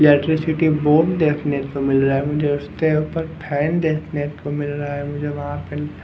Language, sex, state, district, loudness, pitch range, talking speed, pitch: Hindi, male, Haryana, Jhajjar, -20 LUFS, 145-155 Hz, 200 wpm, 150 Hz